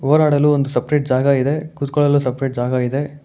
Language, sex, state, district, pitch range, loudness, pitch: Kannada, male, Karnataka, Bangalore, 130-145 Hz, -17 LUFS, 140 Hz